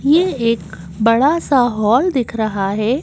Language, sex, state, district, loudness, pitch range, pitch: Hindi, female, Madhya Pradesh, Bhopal, -16 LUFS, 215-275 Hz, 230 Hz